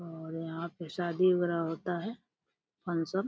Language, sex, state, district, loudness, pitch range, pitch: Hindi, female, Uttar Pradesh, Deoria, -33 LUFS, 165-185 Hz, 170 Hz